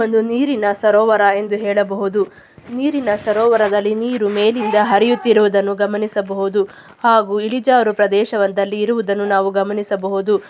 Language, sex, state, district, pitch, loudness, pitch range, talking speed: Kannada, female, Karnataka, Chamarajanagar, 210 Hz, -16 LUFS, 200-220 Hz, 95 wpm